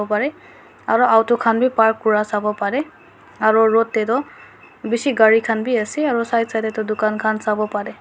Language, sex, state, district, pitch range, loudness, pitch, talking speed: Nagamese, female, Nagaland, Dimapur, 215-235 Hz, -18 LUFS, 225 Hz, 200 wpm